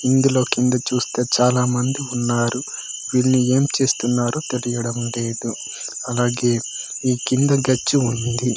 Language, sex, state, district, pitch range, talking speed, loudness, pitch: Telugu, male, Andhra Pradesh, Manyam, 120-130 Hz, 105 wpm, -20 LUFS, 125 Hz